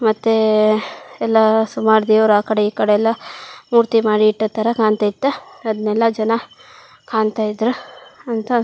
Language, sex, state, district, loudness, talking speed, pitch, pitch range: Kannada, female, Karnataka, Shimoga, -17 LUFS, 125 wpm, 220 Hz, 215-225 Hz